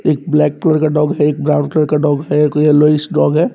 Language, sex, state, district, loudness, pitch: Hindi, male, Bihar, West Champaran, -13 LUFS, 150 Hz